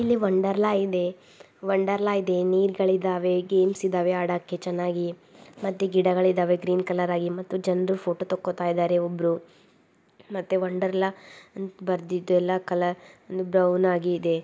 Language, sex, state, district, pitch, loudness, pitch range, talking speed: Kannada, female, Karnataka, Gulbarga, 185 Hz, -25 LUFS, 180-190 Hz, 135 wpm